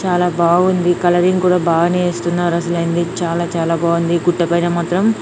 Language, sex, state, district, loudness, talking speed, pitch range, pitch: Telugu, female, Telangana, Nalgonda, -15 LUFS, 150 wpm, 170-180 Hz, 175 Hz